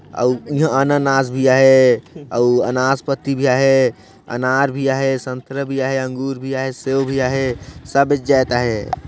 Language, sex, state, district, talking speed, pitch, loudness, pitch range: Chhattisgarhi, male, Chhattisgarh, Sarguja, 170 wpm, 130 Hz, -17 LUFS, 125-135 Hz